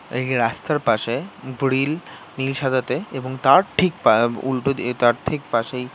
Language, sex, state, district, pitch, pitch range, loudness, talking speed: Bengali, male, West Bengal, North 24 Parganas, 130 Hz, 125-140 Hz, -21 LUFS, 140 wpm